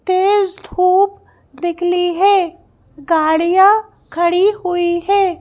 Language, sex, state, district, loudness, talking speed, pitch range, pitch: Hindi, female, Madhya Pradesh, Bhopal, -15 LUFS, 90 wpm, 345-395 Hz, 365 Hz